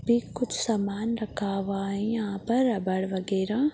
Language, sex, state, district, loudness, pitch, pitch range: Hindi, female, Bihar, Jahanabad, -28 LUFS, 210 Hz, 195-230 Hz